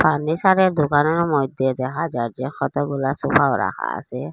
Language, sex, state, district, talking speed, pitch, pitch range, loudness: Bengali, female, Assam, Hailakandi, 150 wpm, 145 Hz, 130-160 Hz, -20 LUFS